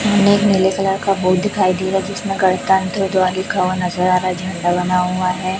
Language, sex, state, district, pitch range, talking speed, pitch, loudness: Hindi, female, Chhattisgarh, Raipur, 185-195 Hz, 235 wpm, 185 Hz, -17 LUFS